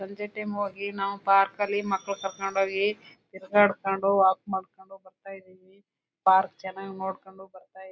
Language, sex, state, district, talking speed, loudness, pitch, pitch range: Kannada, female, Karnataka, Chamarajanagar, 135 wpm, -26 LUFS, 195 Hz, 190-200 Hz